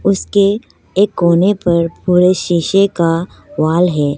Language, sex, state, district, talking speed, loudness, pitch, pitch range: Hindi, female, Arunachal Pradesh, Lower Dibang Valley, 130 wpm, -14 LUFS, 180 Hz, 170-195 Hz